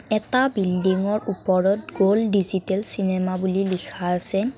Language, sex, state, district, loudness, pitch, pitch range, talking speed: Assamese, female, Assam, Kamrup Metropolitan, -19 LUFS, 195 Hz, 185-210 Hz, 120 wpm